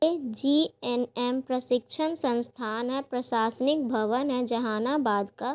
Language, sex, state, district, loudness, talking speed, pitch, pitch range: Hindi, female, Bihar, Gaya, -28 LUFS, 120 wpm, 250 Hz, 235-275 Hz